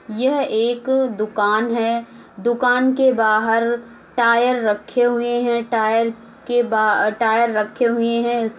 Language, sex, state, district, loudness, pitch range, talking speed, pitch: Hindi, female, Uttar Pradesh, Muzaffarnagar, -18 LUFS, 220-240 Hz, 140 wpm, 235 Hz